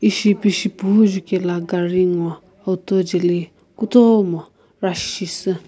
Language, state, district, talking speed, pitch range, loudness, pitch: Sumi, Nagaland, Kohima, 115 wpm, 175-205 Hz, -18 LUFS, 190 Hz